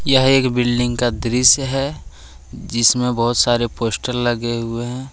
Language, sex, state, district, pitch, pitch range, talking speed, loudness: Hindi, male, Jharkhand, Ranchi, 120 Hz, 115-125 Hz, 150 wpm, -17 LUFS